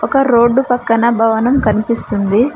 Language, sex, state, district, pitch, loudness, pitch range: Telugu, female, Telangana, Mahabubabad, 235 Hz, -13 LUFS, 220-245 Hz